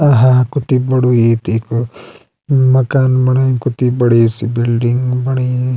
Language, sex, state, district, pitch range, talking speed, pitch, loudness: Garhwali, male, Uttarakhand, Uttarkashi, 120-130 Hz, 125 wpm, 125 Hz, -13 LUFS